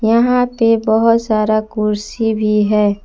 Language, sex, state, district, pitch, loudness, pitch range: Hindi, female, Jharkhand, Palamu, 220 Hz, -15 LUFS, 210-230 Hz